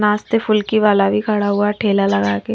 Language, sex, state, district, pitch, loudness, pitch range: Hindi, female, Haryana, Charkhi Dadri, 210 Hz, -16 LUFS, 200-215 Hz